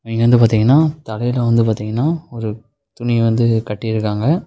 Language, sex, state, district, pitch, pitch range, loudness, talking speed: Tamil, male, Tamil Nadu, Namakkal, 115 Hz, 110-125 Hz, -16 LUFS, 135 wpm